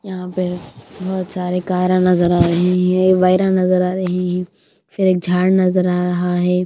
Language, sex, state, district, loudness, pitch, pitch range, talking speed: Hindi, female, Punjab, Kapurthala, -16 LUFS, 180 Hz, 180-185 Hz, 190 wpm